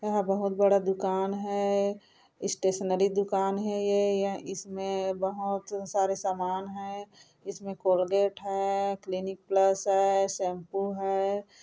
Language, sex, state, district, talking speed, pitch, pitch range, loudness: Chhattisgarhi, female, Chhattisgarh, Korba, 120 wpm, 195 Hz, 190-200 Hz, -29 LUFS